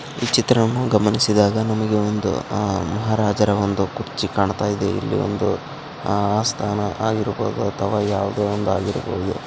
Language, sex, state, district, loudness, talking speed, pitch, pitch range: Kannada, male, Karnataka, Raichur, -21 LUFS, 115 wpm, 105 Hz, 100-110 Hz